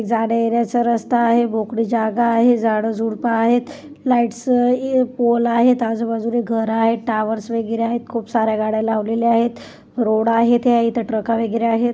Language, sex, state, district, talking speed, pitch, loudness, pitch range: Marathi, female, Maharashtra, Chandrapur, 155 wpm, 230 Hz, -18 LUFS, 225-240 Hz